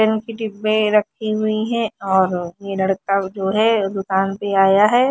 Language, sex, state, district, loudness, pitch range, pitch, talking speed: Hindi, female, Haryana, Charkhi Dadri, -18 LUFS, 195-220 Hz, 205 Hz, 140 wpm